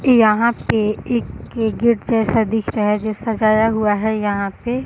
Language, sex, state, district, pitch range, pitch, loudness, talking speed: Hindi, female, Bihar, Sitamarhi, 210-230 Hz, 220 Hz, -18 LUFS, 175 wpm